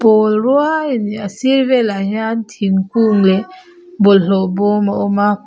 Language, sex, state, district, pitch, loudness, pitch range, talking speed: Mizo, female, Mizoram, Aizawl, 215 Hz, -14 LUFS, 200-250 Hz, 175 wpm